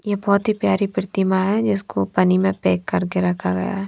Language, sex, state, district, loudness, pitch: Hindi, female, Punjab, Fazilka, -20 LUFS, 190 Hz